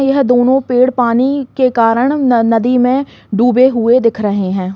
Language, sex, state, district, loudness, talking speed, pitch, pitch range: Hindi, female, Uttar Pradesh, Hamirpur, -12 LUFS, 175 wpm, 245 Hz, 230-260 Hz